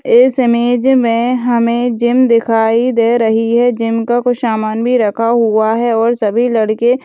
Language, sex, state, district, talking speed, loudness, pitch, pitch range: Hindi, female, Bihar, Saharsa, 180 wpm, -12 LUFS, 235 Hz, 225-245 Hz